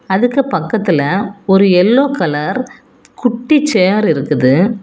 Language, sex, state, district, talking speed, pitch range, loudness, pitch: Tamil, female, Tamil Nadu, Kanyakumari, 100 wpm, 180-245 Hz, -13 LUFS, 200 Hz